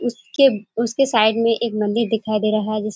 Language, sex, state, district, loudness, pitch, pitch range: Hindi, female, Bihar, Kishanganj, -19 LUFS, 225 Hz, 215-235 Hz